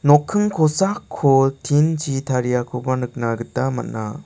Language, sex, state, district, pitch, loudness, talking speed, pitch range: Garo, male, Meghalaya, South Garo Hills, 135 Hz, -20 LUFS, 110 wpm, 125-150 Hz